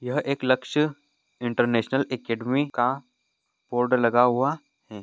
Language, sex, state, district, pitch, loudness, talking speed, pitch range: Hindi, male, Bihar, East Champaran, 130 Hz, -24 LUFS, 130 wpm, 120-140 Hz